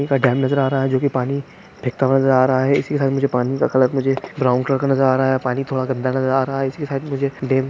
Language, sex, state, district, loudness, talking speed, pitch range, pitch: Hindi, female, West Bengal, North 24 Parganas, -19 LUFS, 335 wpm, 130-135 Hz, 135 Hz